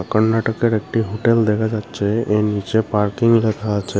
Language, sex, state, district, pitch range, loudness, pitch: Bengali, male, Tripura, Unakoti, 105-115 Hz, -18 LUFS, 110 Hz